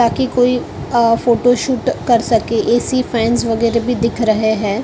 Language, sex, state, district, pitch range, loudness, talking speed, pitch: Hindi, female, Maharashtra, Mumbai Suburban, 230-245 Hz, -15 LUFS, 175 wpm, 235 Hz